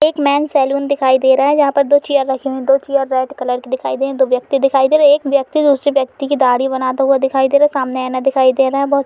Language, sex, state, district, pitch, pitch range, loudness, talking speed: Hindi, female, Uttar Pradesh, Budaun, 275 Hz, 265-280 Hz, -14 LUFS, 305 wpm